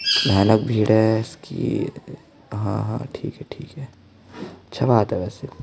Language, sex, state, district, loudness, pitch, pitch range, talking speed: Hindi, male, Chhattisgarh, Jashpur, -21 LUFS, 110 Hz, 105-130 Hz, 150 wpm